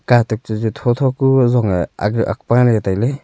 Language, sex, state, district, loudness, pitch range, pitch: Wancho, male, Arunachal Pradesh, Longding, -16 LUFS, 110-125 Hz, 115 Hz